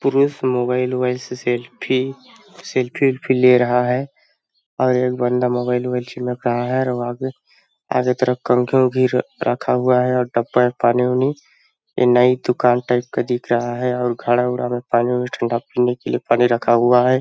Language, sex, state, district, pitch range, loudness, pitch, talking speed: Hindi, male, Chhattisgarh, Balrampur, 125-130 Hz, -18 LUFS, 125 Hz, 180 wpm